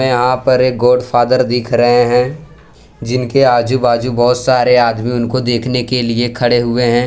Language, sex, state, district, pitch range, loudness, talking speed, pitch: Hindi, male, Gujarat, Valsad, 120-130 Hz, -13 LUFS, 170 wpm, 125 Hz